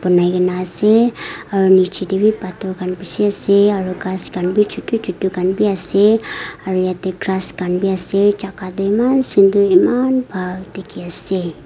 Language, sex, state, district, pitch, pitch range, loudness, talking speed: Nagamese, female, Nagaland, Kohima, 190 Hz, 185-205 Hz, -16 LUFS, 180 wpm